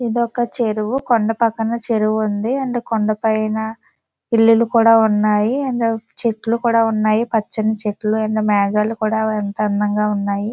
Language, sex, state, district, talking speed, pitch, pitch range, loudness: Telugu, female, Andhra Pradesh, Visakhapatnam, 150 wpm, 220 Hz, 215-230 Hz, -18 LUFS